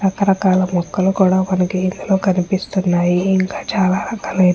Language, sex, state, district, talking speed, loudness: Telugu, female, Andhra Pradesh, Chittoor, 105 wpm, -17 LUFS